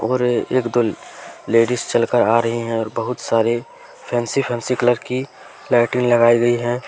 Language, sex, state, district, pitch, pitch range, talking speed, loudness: Hindi, male, Jharkhand, Deoghar, 120 Hz, 115-125 Hz, 165 wpm, -18 LUFS